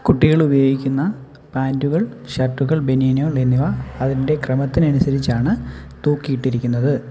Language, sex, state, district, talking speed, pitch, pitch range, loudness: Malayalam, male, Kerala, Kollam, 75 wpm, 135 Hz, 130-145 Hz, -18 LUFS